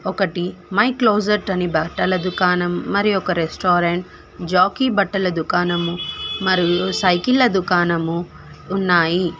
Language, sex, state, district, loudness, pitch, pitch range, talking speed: Telugu, female, Telangana, Hyderabad, -19 LUFS, 180 Hz, 175-195 Hz, 95 wpm